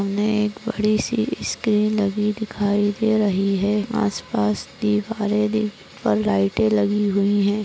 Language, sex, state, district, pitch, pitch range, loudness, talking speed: Hindi, female, Maharashtra, Nagpur, 205 Hz, 195-215 Hz, -21 LUFS, 150 wpm